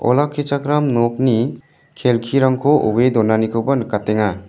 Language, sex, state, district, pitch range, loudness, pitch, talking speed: Garo, male, Meghalaya, West Garo Hills, 115-140 Hz, -17 LUFS, 125 Hz, 80 wpm